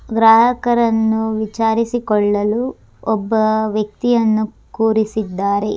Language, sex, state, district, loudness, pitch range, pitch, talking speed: Kannada, male, Karnataka, Dharwad, -16 LUFS, 215-230 Hz, 220 Hz, 50 wpm